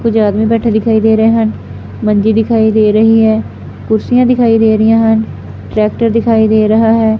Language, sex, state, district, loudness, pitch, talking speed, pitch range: Punjabi, female, Punjab, Fazilka, -10 LUFS, 220 Hz, 185 wpm, 220-225 Hz